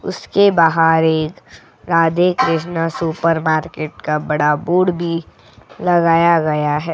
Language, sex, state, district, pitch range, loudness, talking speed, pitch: Hindi, female, Goa, North and South Goa, 155-170 Hz, -16 LUFS, 110 wpm, 165 Hz